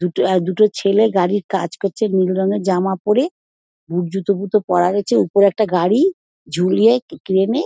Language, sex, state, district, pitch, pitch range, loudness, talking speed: Bengali, female, West Bengal, Dakshin Dinajpur, 195 Hz, 185-215 Hz, -17 LUFS, 170 wpm